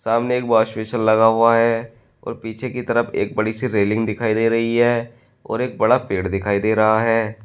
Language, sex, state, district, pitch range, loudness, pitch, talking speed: Hindi, male, Uttar Pradesh, Shamli, 110-115 Hz, -19 LUFS, 115 Hz, 215 wpm